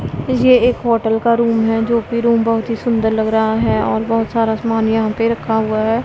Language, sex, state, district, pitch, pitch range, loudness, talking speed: Hindi, female, Punjab, Pathankot, 225 Hz, 220-235 Hz, -16 LUFS, 240 wpm